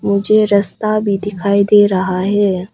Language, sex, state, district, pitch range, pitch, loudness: Hindi, female, Arunachal Pradesh, Papum Pare, 195-205 Hz, 200 Hz, -14 LUFS